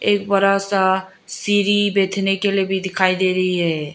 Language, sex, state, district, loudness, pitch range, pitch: Hindi, female, Arunachal Pradesh, Lower Dibang Valley, -18 LUFS, 185-200 Hz, 195 Hz